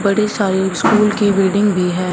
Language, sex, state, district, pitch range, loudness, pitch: Hindi, male, Punjab, Fazilka, 190-210 Hz, -15 LUFS, 200 Hz